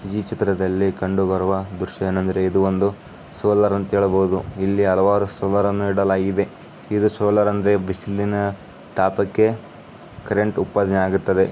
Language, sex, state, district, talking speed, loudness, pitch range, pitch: Kannada, male, Karnataka, Bellary, 125 wpm, -20 LUFS, 95-100 Hz, 100 Hz